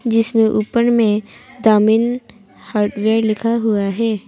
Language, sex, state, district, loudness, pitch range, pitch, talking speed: Hindi, female, Arunachal Pradesh, Papum Pare, -16 LUFS, 215-230 Hz, 220 Hz, 110 wpm